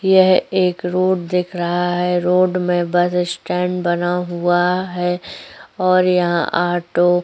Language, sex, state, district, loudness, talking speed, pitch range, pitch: Hindi, female, Chhattisgarh, Korba, -17 LUFS, 140 wpm, 175-180 Hz, 180 Hz